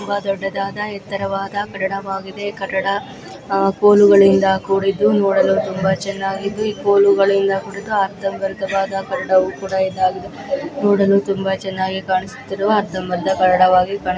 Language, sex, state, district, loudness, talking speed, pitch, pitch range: Kannada, female, Karnataka, Belgaum, -17 LUFS, 95 wpm, 195 Hz, 190-200 Hz